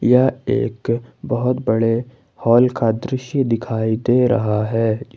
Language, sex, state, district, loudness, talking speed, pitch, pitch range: Hindi, male, Jharkhand, Ranchi, -19 LUFS, 130 wpm, 120 Hz, 115-125 Hz